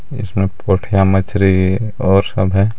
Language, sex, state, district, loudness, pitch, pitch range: Hindi, male, Jharkhand, Garhwa, -15 LUFS, 95 Hz, 95-105 Hz